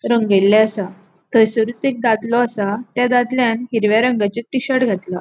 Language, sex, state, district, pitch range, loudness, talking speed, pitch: Konkani, female, Goa, North and South Goa, 205-245 Hz, -17 LUFS, 140 wpm, 225 Hz